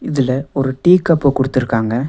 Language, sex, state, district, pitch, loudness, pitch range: Tamil, male, Tamil Nadu, Nilgiris, 135 Hz, -15 LUFS, 130-145 Hz